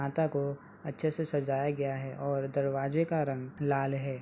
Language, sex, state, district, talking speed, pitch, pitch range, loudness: Hindi, male, Uttar Pradesh, Etah, 185 wpm, 140 Hz, 135-145 Hz, -32 LUFS